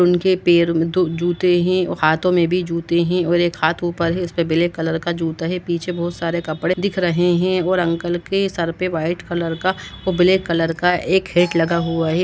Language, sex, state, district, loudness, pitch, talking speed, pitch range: Hindi, male, Uttar Pradesh, Jalaun, -19 LUFS, 175 Hz, 235 wpm, 170-180 Hz